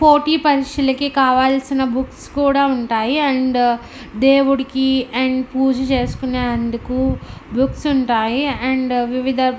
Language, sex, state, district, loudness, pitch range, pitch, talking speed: Telugu, female, Andhra Pradesh, Anantapur, -17 LUFS, 255-275 Hz, 260 Hz, 100 wpm